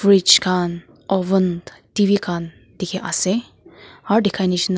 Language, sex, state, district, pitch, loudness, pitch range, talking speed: Nagamese, female, Nagaland, Kohima, 185 Hz, -19 LUFS, 180-200 Hz, 125 wpm